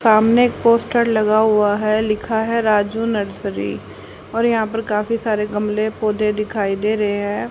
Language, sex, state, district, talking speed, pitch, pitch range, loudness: Hindi, female, Haryana, Rohtak, 170 wpm, 215 Hz, 210-225 Hz, -18 LUFS